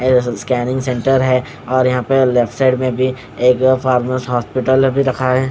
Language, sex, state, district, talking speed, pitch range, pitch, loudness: Hindi, male, Odisha, Khordha, 140 wpm, 125-130 Hz, 130 Hz, -15 LUFS